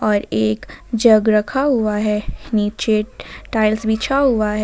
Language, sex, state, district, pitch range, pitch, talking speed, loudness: Hindi, female, Jharkhand, Ranchi, 210-225 Hz, 215 Hz, 140 wpm, -18 LUFS